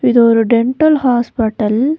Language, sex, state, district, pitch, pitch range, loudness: Tamil, female, Tamil Nadu, Nilgiris, 240 Hz, 230-260 Hz, -13 LUFS